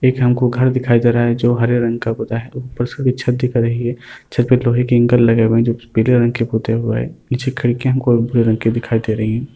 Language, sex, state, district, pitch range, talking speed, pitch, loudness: Hindi, male, Uttar Pradesh, Varanasi, 115-125 Hz, 295 wpm, 120 Hz, -16 LUFS